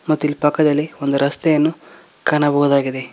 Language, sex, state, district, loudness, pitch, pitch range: Kannada, male, Karnataka, Koppal, -17 LUFS, 150 Hz, 140-155 Hz